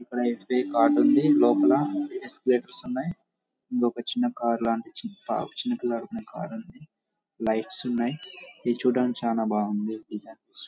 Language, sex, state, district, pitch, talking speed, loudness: Telugu, male, Telangana, Karimnagar, 125 Hz, 145 wpm, -26 LUFS